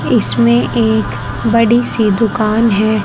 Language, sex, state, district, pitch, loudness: Hindi, female, Haryana, Rohtak, 210 Hz, -13 LUFS